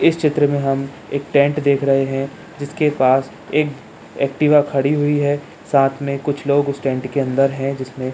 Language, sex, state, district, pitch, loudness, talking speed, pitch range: Hindi, male, Bihar, Jamui, 140 Hz, -18 LUFS, 190 wpm, 135-145 Hz